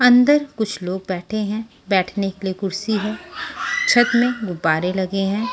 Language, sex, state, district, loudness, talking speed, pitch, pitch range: Hindi, female, Punjab, Pathankot, -20 LUFS, 175 wpm, 205 Hz, 190-235 Hz